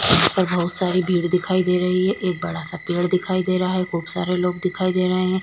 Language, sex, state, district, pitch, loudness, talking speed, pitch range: Hindi, female, Goa, North and South Goa, 180 Hz, -20 LUFS, 255 wpm, 180-185 Hz